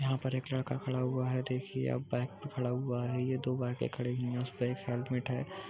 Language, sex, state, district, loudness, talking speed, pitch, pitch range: Hindi, male, Uttar Pradesh, Budaun, -35 LUFS, 250 wpm, 125 Hz, 125-130 Hz